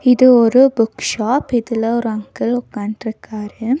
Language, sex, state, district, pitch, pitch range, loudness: Tamil, female, Tamil Nadu, Nilgiris, 230 Hz, 220-250 Hz, -16 LUFS